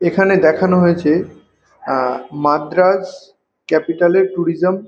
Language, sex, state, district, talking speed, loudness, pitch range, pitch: Bengali, male, West Bengal, North 24 Parganas, 110 wpm, -15 LUFS, 160-190 Hz, 175 Hz